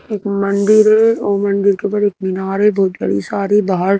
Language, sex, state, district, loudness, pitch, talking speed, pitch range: Hindi, female, Madhya Pradesh, Bhopal, -15 LUFS, 200 Hz, 210 wpm, 195-210 Hz